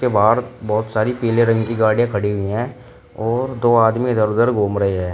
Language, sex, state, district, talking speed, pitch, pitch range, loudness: Hindi, male, Uttar Pradesh, Shamli, 210 wpm, 115 Hz, 105-120 Hz, -18 LUFS